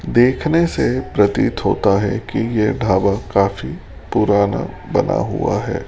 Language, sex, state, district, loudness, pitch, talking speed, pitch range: Hindi, male, Rajasthan, Jaipur, -17 LUFS, 105 Hz, 135 wpm, 100-120 Hz